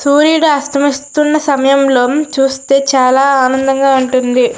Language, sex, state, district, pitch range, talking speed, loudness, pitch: Telugu, female, Andhra Pradesh, Srikakulam, 265-285 Hz, 90 wpm, -11 LUFS, 275 Hz